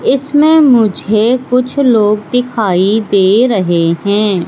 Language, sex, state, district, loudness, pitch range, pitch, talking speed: Hindi, female, Madhya Pradesh, Katni, -11 LUFS, 195-250 Hz, 220 Hz, 105 wpm